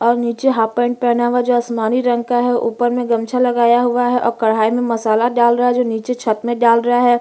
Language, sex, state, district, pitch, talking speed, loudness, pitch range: Hindi, female, Chhattisgarh, Bastar, 240 Hz, 265 wpm, -16 LUFS, 235-245 Hz